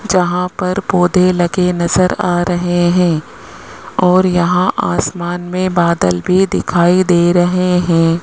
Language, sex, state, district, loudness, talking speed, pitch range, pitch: Hindi, male, Rajasthan, Jaipur, -13 LUFS, 130 wpm, 175-180 Hz, 180 Hz